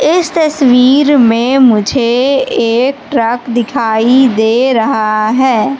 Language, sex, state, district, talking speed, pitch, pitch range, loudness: Hindi, female, Madhya Pradesh, Katni, 105 wpm, 250 Hz, 230-275 Hz, -10 LUFS